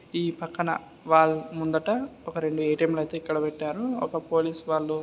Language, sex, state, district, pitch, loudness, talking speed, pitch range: Telugu, male, Karnataka, Dharwad, 160 Hz, -27 LUFS, 165 wpm, 155-165 Hz